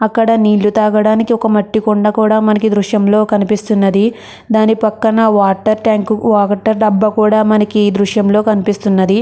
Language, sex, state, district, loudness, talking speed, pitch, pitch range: Telugu, female, Andhra Pradesh, Krishna, -12 LUFS, 130 wpm, 215 Hz, 210-220 Hz